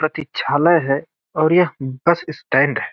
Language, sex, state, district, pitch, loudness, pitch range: Hindi, male, Bihar, Gopalganj, 155 Hz, -18 LUFS, 140-165 Hz